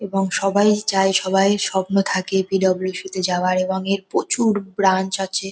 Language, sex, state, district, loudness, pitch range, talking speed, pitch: Bengali, female, West Bengal, North 24 Parganas, -19 LUFS, 190-195 Hz, 175 wpm, 195 Hz